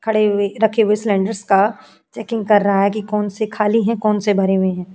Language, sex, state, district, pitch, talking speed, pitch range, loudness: Hindi, female, Uttar Pradesh, Jyotiba Phule Nagar, 210 Hz, 255 wpm, 200-220 Hz, -17 LUFS